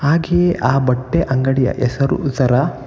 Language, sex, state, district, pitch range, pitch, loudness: Kannada, male, Karnataka, Bangalore, 130-165 Hz, 135 Hz, -16 LUFS